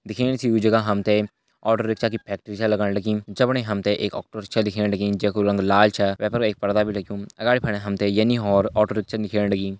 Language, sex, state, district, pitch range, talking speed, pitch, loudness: Hindi, male, Uttarakhand, Uttarkashi, 100-110 Hz, 245 wpm, 105 Hz, -22 LUFS